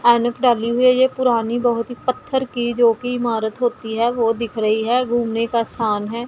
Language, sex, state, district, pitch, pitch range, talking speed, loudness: Hindi, female, Punjab, Pathankot, 235 Hz, 230-245 Hz, 170 wpm, -19 LUFS